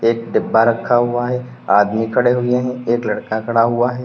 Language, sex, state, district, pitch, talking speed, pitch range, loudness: Hindi, male, Uttar Pradesh, Lalitpur, 120 Hz, 205 wpm, 115-125 Hz, -17 LUFS